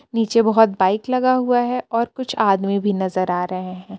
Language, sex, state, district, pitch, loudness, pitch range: Hindi, female, Jharkhand, Palamu, 220 Hz, -19 LUFS, 190-245 Hz